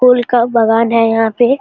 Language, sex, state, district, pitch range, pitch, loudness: Hindi, male, Bihar, Jamui, 225-245 Hz, 235 Hz, -12 LUFS